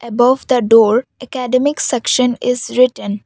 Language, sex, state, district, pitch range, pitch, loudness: English, female, Assam, Kamrup Metropolitan, 235-255 Hz, 250 Hz, -14 LUFS